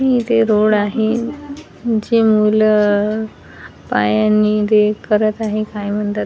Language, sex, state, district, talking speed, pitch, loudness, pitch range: Marathi, female, Maharashtra, Washim, 115 wpm, 215 Hz, -16 LUFS, 210-225 Hz